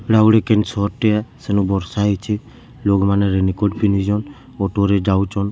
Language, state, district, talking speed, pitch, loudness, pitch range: Sambalpuri, Odisha, Sambalpur, 195 wpm, 105 Hz, -18 LUFS, 100-110 Hz